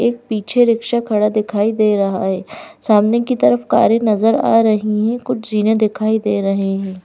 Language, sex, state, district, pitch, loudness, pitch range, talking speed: Hindi, female, Bihar, Katihar, 215 Hz, -16 LUFS, 205-230 Hz, 185 wpm